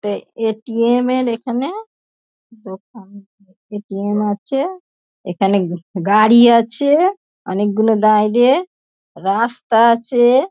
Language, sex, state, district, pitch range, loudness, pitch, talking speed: Bengali, female, West Bengal, Dakshin Dinajpur, 205-245 Hz, -15 LUFS, 225 Hz, 105 wpm